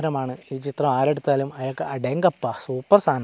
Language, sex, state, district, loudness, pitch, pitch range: Malayalam, male, Kerala, Kasaragod, -23 LUFS, 135 Hz, 130-145 Hz